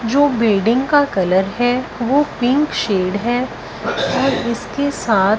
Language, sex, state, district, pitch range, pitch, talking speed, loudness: Hindi, female, Punjab, Fazilka, 210-270 Hz, 240 Hz, 135 wpm, -17 LUFS